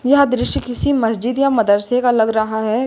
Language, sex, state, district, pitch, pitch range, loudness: Hindi, female, Uttar Pradesh, Lucknow, 245 Hz, 220-260 Hz, -16 LUFS